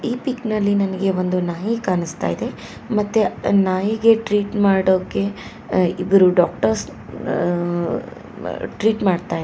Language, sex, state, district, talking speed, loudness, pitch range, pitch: Kannada, female, Karnataka, Koppal, 115 wpm, -20 LUFS, 180-215 Hz, 195 Hz